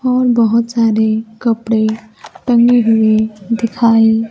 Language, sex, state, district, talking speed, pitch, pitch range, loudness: Hindi, female, Bihar, Kaimur, 95 wpm, 225 Hz, 220-235 Hz, -13 LUFS